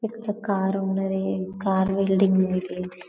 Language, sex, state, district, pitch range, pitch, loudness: Telugu, female, Telangana, Karimnagar, 190-195 Hz, 190 Hz, -24 LUFS